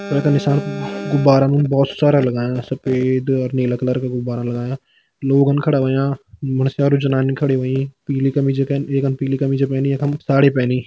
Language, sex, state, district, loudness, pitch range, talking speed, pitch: Hindi, male, Uttarakhand, Tehri Garhwal, -18 LUFS, 130-140 Hz, 160 wpm, 135 Hz